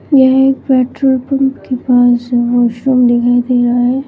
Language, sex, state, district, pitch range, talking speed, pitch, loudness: Hindi, female, Uttar Pradesh, Shamli, 245-265 Hz, 160 wpm, 250 Hz, -12 LUFS